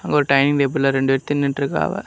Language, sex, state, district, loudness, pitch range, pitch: Tamil, male, Tamil Nadu, Kanyakumari, -18 LUFS, 135-145 Hz, 140 Hz